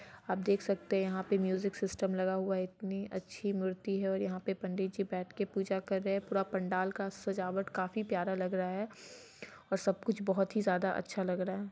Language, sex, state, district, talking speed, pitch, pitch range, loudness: Hindi, female, Bihar, Sitamarhi, 230 wpm, 195 Hz, 185-200 Hz, -35 LUFS